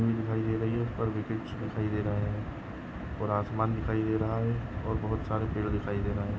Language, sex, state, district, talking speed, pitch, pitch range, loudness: Hindi, male, Goa, North and South Goa, 265 wpm, 110 Hz, 105-110 Hz, -32 LUFS